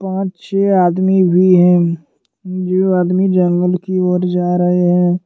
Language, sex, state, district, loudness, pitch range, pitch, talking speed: Hindi, male, Jharkhand, Deoghar, -14 LUFS, 180-185 Hz, 180 Hz, 150 wpm